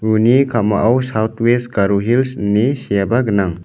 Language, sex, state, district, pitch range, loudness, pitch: Garo, male, Meghalaya, West Garo Hills, 100-120 Hz, -15 LUFS, 110 Hz